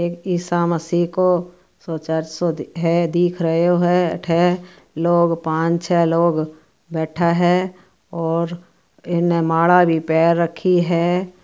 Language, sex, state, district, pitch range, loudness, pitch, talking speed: Marwari, female, Rajasthan, Churu, 165-175 Hz, -18 LUFS, 170 Hz, 125 wpm